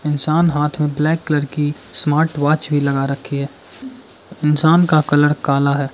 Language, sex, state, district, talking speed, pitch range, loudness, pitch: Hindi, male, Arunachal Pradesh, Lower Dibang Valley, 160 wpm, 145-155 Hz, -17 LUFS, 150 Hz